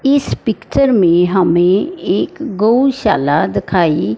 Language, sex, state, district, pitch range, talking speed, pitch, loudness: Hindi, female, Punjab, Fazilka, 175-270 Hz, 100 wpm, 205 Hz, -14 LUFS